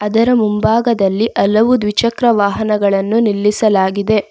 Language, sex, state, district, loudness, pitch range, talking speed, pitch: Kannada, female, Karnataka, Bangalore, -14 LUFS, 205-230 Hz, 85 wpm, 215 Hz